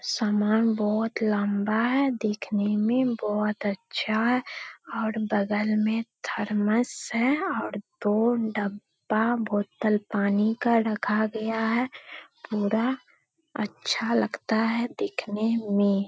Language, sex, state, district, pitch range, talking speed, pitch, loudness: Hindi, female, Bihar, Purnia, 210-230 Hz, 110 wpm, 220 Hz, -26 LUFS